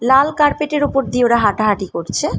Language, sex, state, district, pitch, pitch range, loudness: Bengali, female, West Bengal, Malda, 245 Hz, 210-290 Hz, -16 LUFS